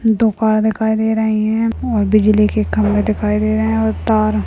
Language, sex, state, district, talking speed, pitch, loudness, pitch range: Hindi, female, Chhattisgarh, Bastar, 200 wpm, 215 Hz, -15 LUFS, 215-220 Hz